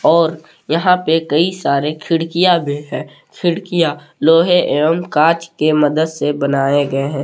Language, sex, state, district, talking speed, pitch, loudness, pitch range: Hindi, male, Jharkhand, Palamu, 150 wpm, 160 Hz, -15 LUFS, 145-165 Hz